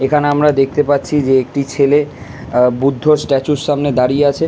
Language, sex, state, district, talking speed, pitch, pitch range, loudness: Bengali, male, West Bengal, Malda, 185 wpm, 140 Hz, 135-145 Hz, -14 LUFS